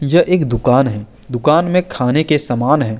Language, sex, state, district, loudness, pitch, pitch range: Hindi, male, Chandigarh, Chandigarh, -15 LUFS, 140 Hz, 120-155 Hz